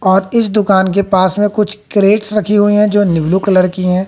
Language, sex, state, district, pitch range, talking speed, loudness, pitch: Hindi, female, Haryana, Jhajjar, 190-210 Hz, 235 wpm, -12 LUFS, 200 Hz